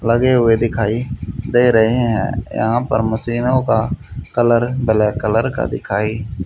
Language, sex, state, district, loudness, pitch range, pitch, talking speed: Hindi, male, Haryana, Jhajjar, -17 LUFS, 110-120 Hz, 115 Hz, 140 wpm